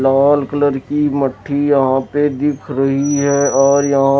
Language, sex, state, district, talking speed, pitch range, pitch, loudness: Hindi, male, Bihar, West Champaran, 170 wpm, 135-145 Hz, 140 Hz, -15 LUFS